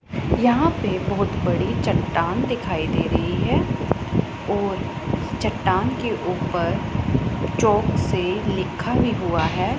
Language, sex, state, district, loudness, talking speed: Hindi, female, Punjab, Pathankot, -22 LUFS, 110 wpm